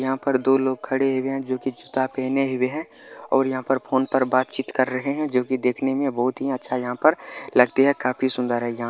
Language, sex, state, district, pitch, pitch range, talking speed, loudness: Maithili, male, Bihar, Madhepura, 130 Hz, 125-135 Hz, 250 wpm, -22 LUFS